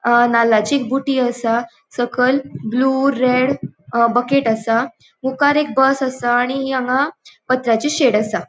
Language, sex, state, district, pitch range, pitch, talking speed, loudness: Konkani, female, Goa, North and South Goa, 235-270 Hz, 255 Hz, 125 wpm, -17 LUFS